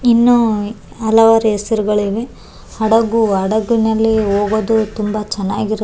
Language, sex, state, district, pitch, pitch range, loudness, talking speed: Kannada, female, Karnataka, Raichur, 220 Hz, 210-225 Hz, -15 LUFS, 105 wpm